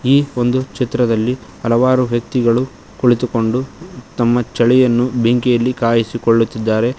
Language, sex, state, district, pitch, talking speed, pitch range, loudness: Kannada, male, Karnataka, Koppal, 120 Hz, 85 wpm, 115-125 Hz, -16 LUFS